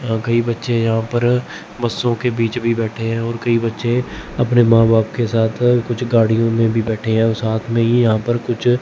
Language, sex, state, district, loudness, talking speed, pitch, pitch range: Hindi, male, Chandigarh, Chandigarh, -17 LUFS, 220 wpm, 115 Hz, 115-120 Hz